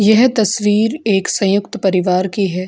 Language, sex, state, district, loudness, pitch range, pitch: Hindi, female, Bihar, Gaya, -15 LUFS, 190-215 Hz, 205 Hz